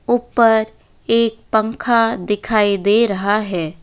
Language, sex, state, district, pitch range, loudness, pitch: Hindi, female, West Bengal, Alipurduar, 205-230 Hz, -16 LUFS, 220 Hz